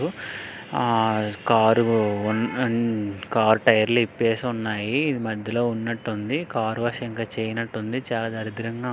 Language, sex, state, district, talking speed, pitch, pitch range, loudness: Telugu, male, Andhra Pradesh, Srikakulam, 115 wpm, 115 Hz, 110-120 Hz, -24 LUFS